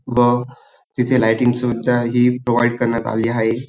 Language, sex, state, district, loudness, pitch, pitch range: Marathi, male, Maharashtra, Dhule, -17 LUFS, 120 Hz, 115-125 Hz